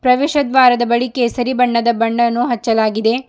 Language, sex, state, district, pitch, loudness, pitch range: Kannada, female, Karnataka, Bidar, 240 Hz, -15 LUFS, 235-250 Hz